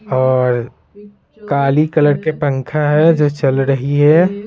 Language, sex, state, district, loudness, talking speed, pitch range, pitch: Hindi, male, Bihar, Patna, -14 LUFS, 135 wpm, 135-160 Hz, 145 Hz